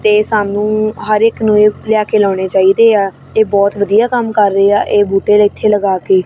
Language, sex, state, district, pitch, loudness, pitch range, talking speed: Punjabi, female, Punjab, Kapurthala, 210 Hz, -12 LUFS, 200-215 Hz, 210 wpm